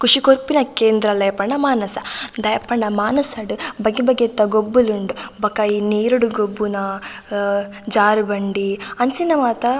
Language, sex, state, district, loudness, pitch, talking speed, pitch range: Tulu, female, Karnataka, Dakshina Kannada, -18 LUFS, 220 Hz, 115 wpm, 205-250 Hz